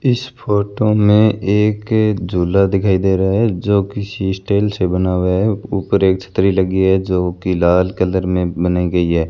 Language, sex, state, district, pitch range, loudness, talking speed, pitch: Hindi, male, Rajasthan, Bikaner, 90-105 Hz, -16 LUFS, 185 wpm, 95 Hz